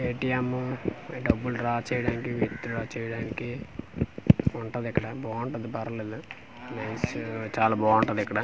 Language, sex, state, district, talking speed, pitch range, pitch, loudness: Telugu, male, Andhra Pradesh, Manyam, 90 wpm, 110-125 Hz, 115 Hz, -29 LUFS